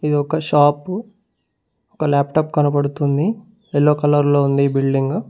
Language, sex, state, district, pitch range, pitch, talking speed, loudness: Telugu, male, Telangana, Mahabubabad, 145-160 Hz, 145 Hz, 145 wpm, -17 LUFS